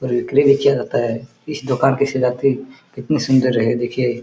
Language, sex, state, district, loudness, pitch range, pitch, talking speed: Hindi, male, Chhattisgarh, Korba, -17 LUFS, 120-140 Hz, 130 Hz, 215 wpm